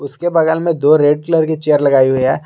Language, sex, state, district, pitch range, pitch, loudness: Hindi, male, Jharkhand, Garhwa, 140-160 Hz, 155 Hz, -13 LUFS